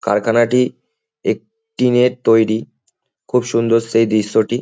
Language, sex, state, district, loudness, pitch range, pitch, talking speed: Bengali, male, West Bengal, Jhargram, -16 LUFS, 115-125 Hz, 120 Hz, 115 wpm